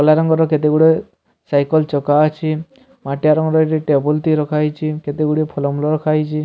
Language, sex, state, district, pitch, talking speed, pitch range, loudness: Odia, male, Odisha, Sambalpur, 155 Hz, 165 wpm, 150-155 Hz, -16 LUFS